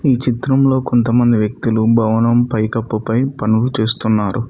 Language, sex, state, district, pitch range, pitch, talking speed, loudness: Telugu, male, Telangana, Mahabubabad, 110-125 Hz, 115 Hz, 120 wpm, -15 LUFS